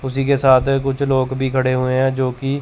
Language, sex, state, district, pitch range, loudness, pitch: Hindi, male, Chandigarh, Chandigarh, 130-135 Hz, -17 LUFS, 130 Hz